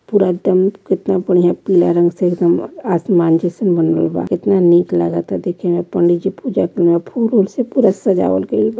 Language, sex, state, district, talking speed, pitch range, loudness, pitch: Hindi, male, Uttar Pradesh, Varanasi, 190 wpm, 170-195 Hz, -15 LUFS, 175 Hz